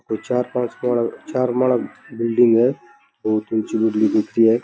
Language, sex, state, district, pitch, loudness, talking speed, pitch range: Rajasthani, male, Rajasthan, Nagaur, 115 Hz, -20 LUFS, 115 wpm, 110-125 Hz